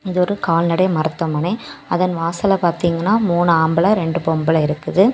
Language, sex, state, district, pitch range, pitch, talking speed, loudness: Tamil, female, Tamil Nadu, Kanyakumari, 160-185 Hz, 170 Hz, 140 wpm, -17 LUFS